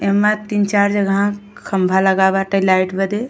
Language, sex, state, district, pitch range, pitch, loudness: Bhojpuri, female, Uttar Pradesh, Gorakhpur, 190-205 Hz, 200 Hz, -16 LUFS